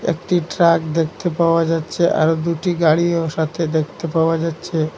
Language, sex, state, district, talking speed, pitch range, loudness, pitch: Bengali, male, Assam, Hailakandi, 145 wpm, 160-170 Hz, -18 LUFS, 165 Hz